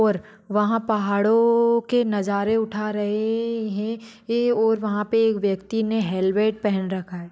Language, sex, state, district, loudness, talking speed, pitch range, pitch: Hindi, female, Maharashtra, Sindhudurg, -22 LUFS, 155 wpm, 205-225 Hz, 215 Hz